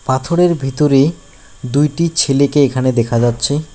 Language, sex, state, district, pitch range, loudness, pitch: Bengali, male, West Bengal, Alipurduar, 130-150 Hz, -14 LUFS, 140 Hz